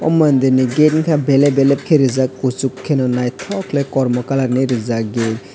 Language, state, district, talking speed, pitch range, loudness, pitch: Kokborok, Tripura, West Tripura, 195 wpm, 125-145 Hz, -16 LUFS, 135 Hz